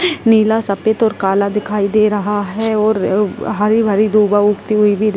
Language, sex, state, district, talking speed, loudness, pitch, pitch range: Hindi, female, Bihar, Jahanabad, 175 wpm, -14 LUFS, 210 Hz, 205-220 Hz